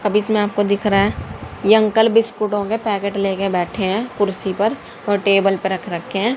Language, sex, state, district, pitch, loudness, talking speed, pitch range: Hindi, female, Haryana, Jhajjar, 205 Hz, -18 LUFS, 205 wpm, 195-220 Hz